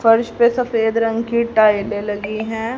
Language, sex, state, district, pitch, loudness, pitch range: Hindi, female, Haryana, Rohtak, 225 Hz, -17 LUFS, 215-235 Hz